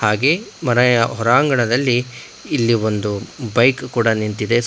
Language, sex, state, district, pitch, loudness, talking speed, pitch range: Kannada, male, Karnataka, Bangalore, 120 Hz, -17 LUFS, 130 wpm, 115-125 Hz